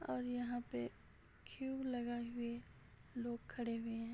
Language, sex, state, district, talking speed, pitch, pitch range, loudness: Hindi, male, Uttar Pradesh, Gorakhpur, 145 wpm, 240 Hz, 230-245 Hz, -45 LUFS